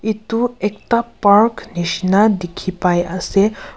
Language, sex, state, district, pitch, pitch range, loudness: Nagamese, female, Nagaland, Kohima, 205 Hz, 185-220 Hz, -17 LUFS